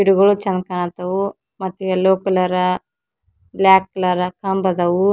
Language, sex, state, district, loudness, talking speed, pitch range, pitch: Kannada, female, Karnataka, Dharwad, -18 LUFS, 105 wpm, 180-190 Hz, 185 Hz